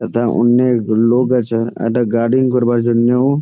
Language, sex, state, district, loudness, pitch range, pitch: Bengali, male, West Bengal, Jalpaiguri, -14 LUFS, 115-125 Hz, 120 Hz